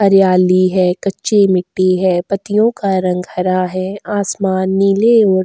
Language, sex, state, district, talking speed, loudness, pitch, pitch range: Hindi, female, Goa, North and South Goa, 155 wpm, -14 LUFS, 190 Hz, 185-200 Hz